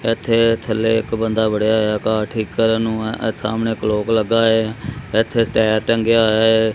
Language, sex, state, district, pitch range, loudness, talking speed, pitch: Punjabi, male, Punjab, Kapurthala, 110-115 Hz, -17 LUFS, 170 wpm, 110 Hz